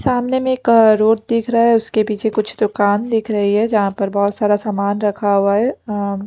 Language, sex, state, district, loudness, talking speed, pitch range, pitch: Hindi, female, Punjab, Pathankot, -16 LUFS, 220 wpm, 205-230 Hz, 215 Hz